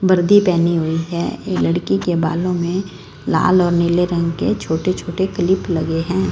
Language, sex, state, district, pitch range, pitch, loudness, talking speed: Hindi, female, Punjab, Fazilka, 165-185 Hz, 170 Hz, -17 LUFS, 180 wpm